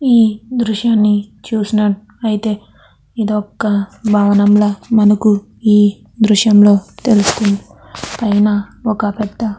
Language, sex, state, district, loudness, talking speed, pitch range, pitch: Telugu, female, Andhra Pradesh, Krishna, -14 LUFS, 90 wpm, 205-220 Hz, 210 Hz